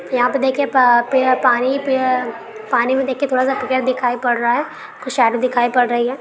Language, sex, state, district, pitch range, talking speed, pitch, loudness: Maithili, female, Bihar, Supaul, 240-260 Hz, 220 wpm, 255 Hz, -17 LUFS